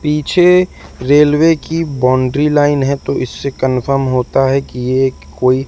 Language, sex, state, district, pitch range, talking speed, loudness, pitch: Hindi, male, Madhya Pradesh, Katni, 130-150 Hz, 170 wpm, -13 LUFS, 140 Hz